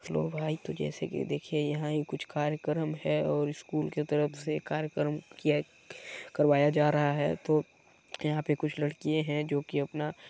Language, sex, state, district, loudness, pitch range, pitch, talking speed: Hindi, female, Chhattisgarh, Balrampur, -31 LUFS, 145-155 Hz, 150 Hz, 175 wpm